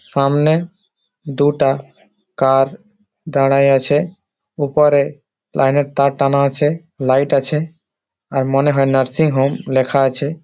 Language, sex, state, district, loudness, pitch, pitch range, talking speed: Bengali, male, West Bengal, Malda, -16 LUFS, 140 Hz, 135-150 Hz, 115 wpm